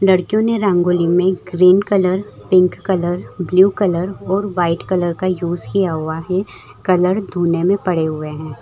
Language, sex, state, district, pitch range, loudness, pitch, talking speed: Hindi, female, Bihar, Madhepura, 175-190 Hz, -17 LUFS, 180 Hz, 165 wpm